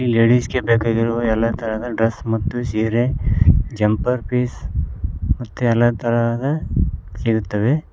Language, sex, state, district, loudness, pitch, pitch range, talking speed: Kannada, male, Karnataka, Koppal, -19 LUFS, 115 Hz, 110-120 Hz, 100 wpm